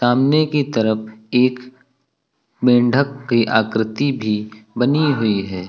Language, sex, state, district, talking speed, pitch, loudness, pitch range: Hindi, male, Uttar Pradesh, Lucknow, 115 wpm, 125 Hz, -18 LUFS, 110-135 Hz